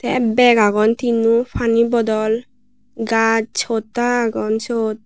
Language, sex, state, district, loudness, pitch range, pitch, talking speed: Chakma, female, Tripura, West Tripura, -17 LUFS, 220-240 Hz, 230 Hz, 120 wpm